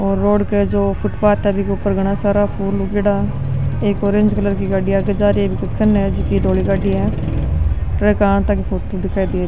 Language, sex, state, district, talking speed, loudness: Rajasthani, male, Rajasthan, Nagaur, 125 wpm, -17 LUFS